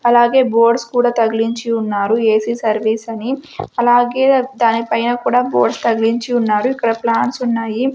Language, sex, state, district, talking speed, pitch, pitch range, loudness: Telugu, female, Andhra Pradesh, Sri Satya Sai, 135 wpm, 235 Hz, 225-245 Hz, -15 LUFS